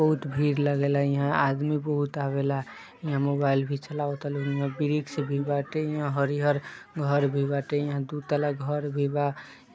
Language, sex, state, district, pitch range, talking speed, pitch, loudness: Bhojpuri, male, Bihar, East Champaran, 140-145 Hz, 165 wpm, 145 Hz, -27 LUFS